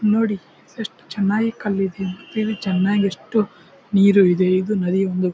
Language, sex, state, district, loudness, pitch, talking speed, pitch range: Kannada, male, Karnataka, Bijapur, -20 LUFS, 195 Hz, 135 wpm, 185-210 Hz